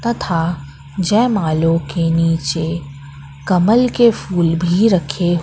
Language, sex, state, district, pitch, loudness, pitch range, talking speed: Hindi, female, Madhya Pradesh, Katni, 170 Hz, -16 LUFS, 160-195 Hz, 100 wpm